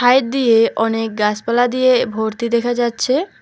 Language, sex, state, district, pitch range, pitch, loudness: Bengali, female, West Bengal, Alipurduar, 225-250 Hz, 235 Hz, -16 LUFS